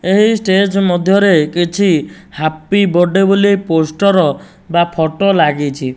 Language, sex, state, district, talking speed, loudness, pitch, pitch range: Odia, male, Odisha, Nuapada, 110 wpm, -13 LUFS, 180 Hz, 160-195 Hz